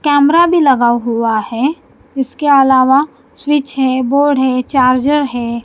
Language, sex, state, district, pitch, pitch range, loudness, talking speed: Hindi, female, Punjab, Kapurthala, 265 Hz, 255-290 Hz, -12 LUFS, 140 wpm